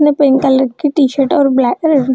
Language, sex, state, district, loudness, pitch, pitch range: Hindi, female, Bihar, Gaya, -12 LUFS, 275 Hz, 265-295 Hz